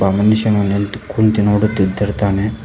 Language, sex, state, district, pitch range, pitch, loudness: Kannada, male, Karnataka, Koppal, 100-110 Hz, 105 Hz, -16 LUFS